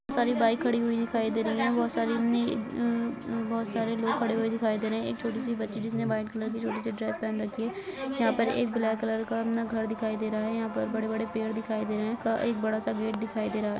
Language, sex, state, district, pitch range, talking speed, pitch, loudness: Hindi, female, Goa, North and South Goa, 220-235 Hz, 290 wpm, 225 Hz, -29 LUFS